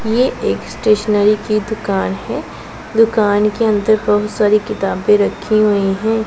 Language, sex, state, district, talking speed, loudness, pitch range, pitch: Hindi, female, Punjab, Pathankot, 145 wpm, -15 LUFS, 205-220 Hz, 215 Hz